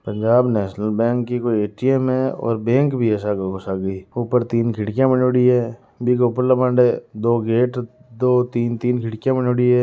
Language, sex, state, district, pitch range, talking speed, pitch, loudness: Marwari, male, Rajasthan, Nagaur, 110-125 Hz, 200 wpm, 120 Hz, -19 LUFS